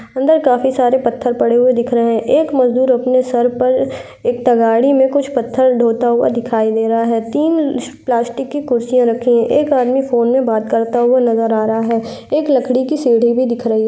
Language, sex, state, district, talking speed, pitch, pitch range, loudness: Hindi, female, Uttar Pradesh, Gorakhpur, 215 wpm, 245 Hz, 235-260 Hz, -14 LUFS